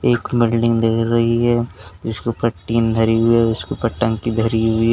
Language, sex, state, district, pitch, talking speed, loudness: Hindi, male, Uttar Pradesh, Lalitpur, 115 Hz, 205 wpm, -18 LUFS